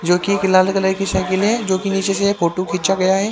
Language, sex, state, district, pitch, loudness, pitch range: Hindi, male, Haryana, Jhajjar, 190 Hz, -17 LUFS, 185-195 Hz